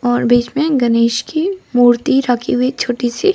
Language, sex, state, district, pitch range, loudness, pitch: Hindi, female, Arunachal Pradesh, Papum Pare, 240-295 Hz, -15 LUFS, 245 Hz